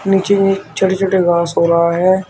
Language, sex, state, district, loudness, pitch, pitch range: Hindi, male, Uttar Pradesh, Shamli, -14 LUFS, 190 Hz, 170-195 Hz